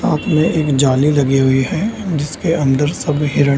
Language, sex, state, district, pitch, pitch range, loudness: Hindi, male, Bihar, Samastipur, 145 Hz, 135-155 Hz, -15 LUFS